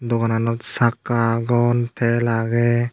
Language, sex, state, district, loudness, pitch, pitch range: Chakma, male, Tripura, Dhalai, -19 LUFS, 120 Hz, 115-120 Hz